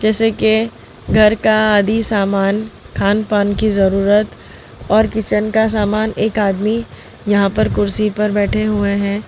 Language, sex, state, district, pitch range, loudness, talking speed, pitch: Hindi, female, Gujarat, Valsad, 200-215 Hz, -15 LUFS, 150 wpm, 210 Hz